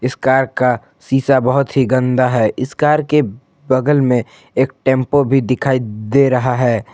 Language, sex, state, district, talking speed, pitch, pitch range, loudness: Hindi, male, Jharkhand, Ranchi, 165 wpm, 130 Hz, 125-140 Hz, -15 LUFS